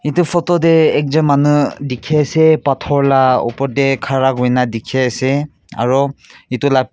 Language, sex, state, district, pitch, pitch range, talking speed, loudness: Nagamese, male, Nagaland, Kohima, 140 Hz, 130-150 Hz, 145 wpm, -14 LUFS